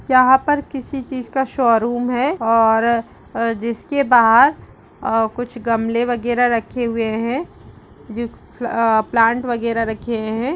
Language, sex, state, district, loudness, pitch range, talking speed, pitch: Hindi, female, Uttar Pradesh, Budaun, -18 LUFS, 230-255 Hz, 140 wpm, 235 Hz